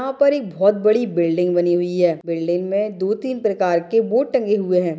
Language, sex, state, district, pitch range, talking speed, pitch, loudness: Hindi, female, Maharashtra, Nagpur, 175-225 Hz, 230 wpm, 195 Hz, -19 LUFS